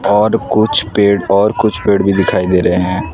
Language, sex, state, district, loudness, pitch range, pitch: Hindi, male, Gujarat, Valsad, -13 LUFS, 90-105 Hz, 100 Hz